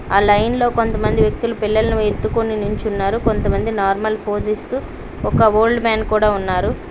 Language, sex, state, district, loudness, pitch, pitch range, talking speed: Telugu, female, Telangana, Karimnagar, -18 LUFS, 215 Hz, 205-225 Hz, 150 wpm